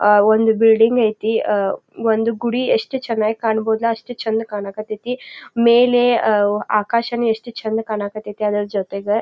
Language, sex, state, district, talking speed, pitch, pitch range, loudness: Kannada, female, Karnataka, Belgaum, 135 wpm, 220 Hz, 210-235 Hz, -18 LUFS